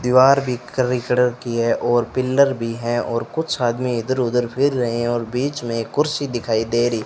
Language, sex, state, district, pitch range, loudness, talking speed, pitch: Hindi, male, Rajasthan, Bikaner, 120-130 Hz, -20 LUFS, 220 wpm, 125 Hz